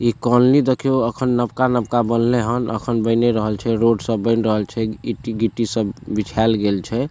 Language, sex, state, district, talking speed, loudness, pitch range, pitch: Maithili, male, Bihar, Supaul, 175 wpm, -19 LUFS, 110-120 Hz, 115 Hz